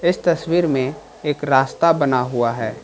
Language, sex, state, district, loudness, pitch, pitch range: Hindi, male, Jharkhand, Ranchi, -19 LUFS, 145 Hz, 130-165 Hz